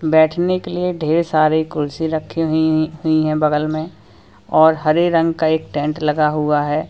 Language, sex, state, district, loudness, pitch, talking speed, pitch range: Hindi, male, Uttar Pradesh, Lalitpur, -17 LUFS, 155 Hz, 185 wpm, 150-160 Hz